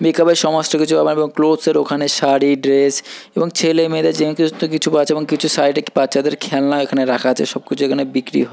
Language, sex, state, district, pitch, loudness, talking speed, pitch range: Bengali, male, West Bengal, Purulia, 150 Hz, -16 LUFS, 220 wpm, 140-160 Hz